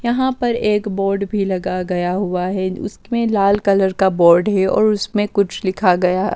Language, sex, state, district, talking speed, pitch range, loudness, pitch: Hindi, female, Delhi, New Delhi, 200 wpm, 185-210 Hz, -17 LUFS, 195 Hz